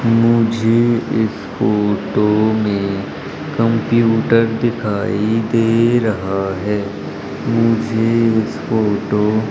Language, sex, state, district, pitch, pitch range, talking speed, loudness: Hindi, female, Madhya Pradesh, Umaria, 110 Hz, 105-115 Hz, 80 wpm, -16 LUFS